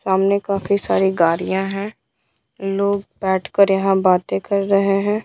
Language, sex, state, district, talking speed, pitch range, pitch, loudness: Hindi, female, Bihar, Patna, 135 wpm, 190-200 Hz, 195 Hz, -18 LUFS